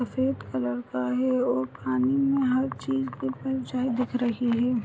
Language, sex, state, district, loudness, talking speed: Hindi, female, Maharashtra, Solapur, -27 LUFS, 175 wpm